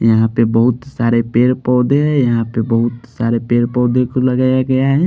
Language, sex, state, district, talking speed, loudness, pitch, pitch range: Hindi, male, Bihar, Patna, 200 wpm, -15 LUFS, 120 Hz, 115-130 Hz